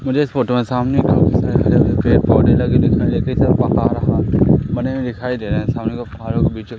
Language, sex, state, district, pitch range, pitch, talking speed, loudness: Hindi, male, Madhya Pradesh, Umaria, 115-130 Hz, 125 Hz, 230 wpm, -16 LUFS